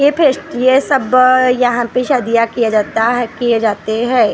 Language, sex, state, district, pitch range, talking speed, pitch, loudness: Hindi, female, Maharashtra, Gondia, 230-260 Hz, 180 wpm, 245 Hz, -13 LUFS